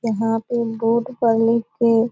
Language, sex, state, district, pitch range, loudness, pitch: Hindi, female, Bihar, Purnia, 225-235 Hz, -19 LUFS, 230 Hz